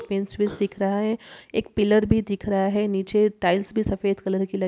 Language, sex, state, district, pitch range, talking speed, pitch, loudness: Hindi, male, Chhattisgarh, Sarguja, 195-210 Hz, 230 wpm, 200 Hz, -24 LUFS